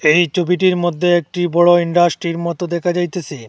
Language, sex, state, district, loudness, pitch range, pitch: Bengali, male, Assam, Hailakandi, -16 LUFS, 170-175 Hz, 175 Hz